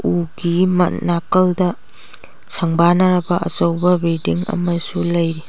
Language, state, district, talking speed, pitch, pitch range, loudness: Manipuri, Manipur, Imphal West, 85 wpm, 175 Hz, 170-180 Hz, -17 LUFS